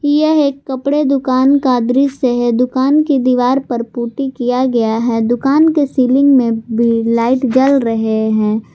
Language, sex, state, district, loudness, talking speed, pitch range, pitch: Hindi, female, Jharkhand, Garhwa, -13 LUFS, 165 wpm, 235-275 Hz, 255 Hz